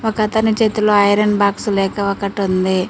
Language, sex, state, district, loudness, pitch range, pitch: Telugu, female, Telangana, Mahabubabad, -16 LUFS, 200-215 Hz, 205 Hz